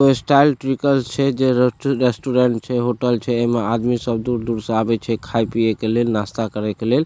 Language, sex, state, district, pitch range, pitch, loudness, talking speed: Maithili, male, Bihar, Supaul, 115-130 Hz, 120 Hz, -19 LUFS, 210 wpm